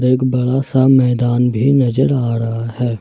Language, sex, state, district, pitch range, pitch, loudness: Hindi, male, Jharkhand, Ranchi, 120-130 Hz, 125 Hz, -15 LUFS